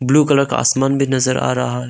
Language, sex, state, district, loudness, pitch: Hindi, male, Arunachal Pradesh, Longding, -16 LUFS, 130 Hz